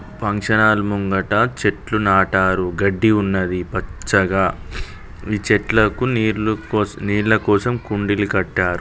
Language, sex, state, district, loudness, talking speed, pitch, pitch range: Telugu, male, Telangana, Karimnagar, -18 LUFS, 110 wpm, 100 Hz, 95-110 Hz